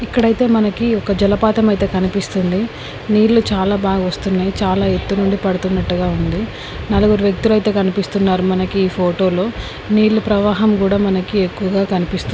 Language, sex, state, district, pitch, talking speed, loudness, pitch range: Telugu, female, Andhra Pradesh, Srikakulam, 200 Hz, 140 wpm, -16 LUFS, 185-210 Hz